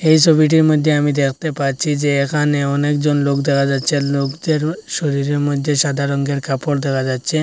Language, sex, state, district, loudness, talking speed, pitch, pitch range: Bengali, male, Assam, Hailakandi, -17 LUFS, 160 wpm, 145 Hz, 140-150 Hz